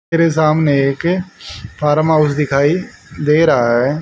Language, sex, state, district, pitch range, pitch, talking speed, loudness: Hindi, male, Haryana, Rohtak, 145-165 Hz, 150 Hz, 135 wpm, -14 LUFS